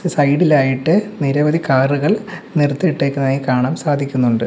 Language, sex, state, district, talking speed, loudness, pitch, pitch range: Malayalam, male, Kerala, Kollam, 95 wpm, -16 LUFS, 145 Hz, 135-165 Hz